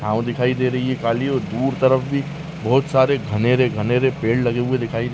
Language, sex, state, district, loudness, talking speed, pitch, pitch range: Kumaoni, male, Uttarakhand, Tehri Garhwal, -19 LUFS, 220 wpm, 125 Hz, 120-130 Hz